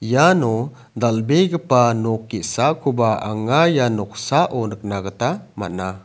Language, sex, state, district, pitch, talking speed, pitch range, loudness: Garo, male, Meghalaya, South Garo Hills, 115 Hz, 100 wpm, 110-135 Hz, -19 LUFS